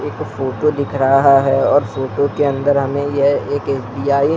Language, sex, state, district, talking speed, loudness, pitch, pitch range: Hindi, male, Bihar, Muzaffarpur, 180 wpm, -16 LUFS, 140 Hz, 135-145 Hz